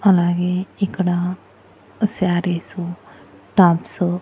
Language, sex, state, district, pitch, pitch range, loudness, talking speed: Telugu, female, Andhra Pradesh, Annamaya, 180 Hz, 175-185 Hz, -20 LUFS, 70 wpm